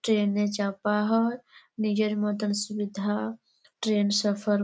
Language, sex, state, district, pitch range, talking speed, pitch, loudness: Bengali, female, West Bengal, Jalpaiguri, 205-215 Hz, 130 wpm, 210 Hz, -27 LUFS